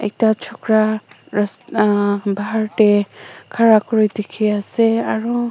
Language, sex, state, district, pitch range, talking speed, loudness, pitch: Nagamese, female, Nagaland, Dimapur, 205-220 Hz, 120 wpm, -17 LUFS, 215 Hz